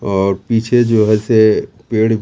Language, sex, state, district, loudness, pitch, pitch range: Hindi, male, Bihar, Katihar, -14 LUFS, 110 Hz, 105-115 Hz